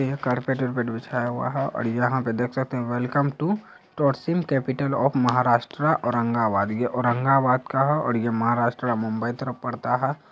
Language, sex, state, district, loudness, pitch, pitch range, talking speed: Hindi, male, Bihar, Saharsa, -24 LUFS, 125 Hz, 120-135 Hz, 175 wpm